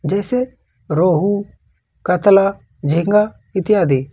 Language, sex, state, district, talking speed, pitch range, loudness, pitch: Hindi, male, Jharkhand, Ranchi, 75 wpm, 165-205 Hz, -17 LUFS, 195 Hz